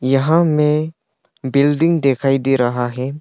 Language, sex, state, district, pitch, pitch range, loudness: Hindi, male, Arunachal Pradesh, Longding, 135 Hz, 130-150 Hz, -16 LUFS